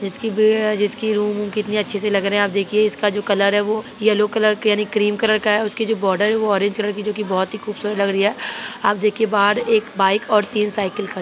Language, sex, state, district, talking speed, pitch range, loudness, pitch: Hindi, female, Bihar, Begusarai, 250 wpm, 205-215 Hz, -19 LUFS, 210 Hz